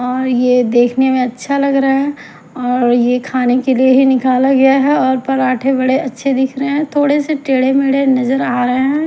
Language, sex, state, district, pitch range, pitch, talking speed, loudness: Hindi, female, Haryana, Jhajjar, 250-275 Hz, 260 Hz, 210 wpm, -13 LUFS